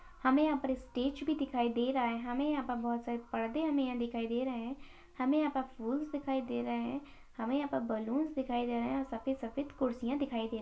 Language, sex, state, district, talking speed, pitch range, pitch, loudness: Hindi, female, Maharashtra, Sindhudurg, 245 wpm, 235-280 Hz, 260 Hz, -35 LUFS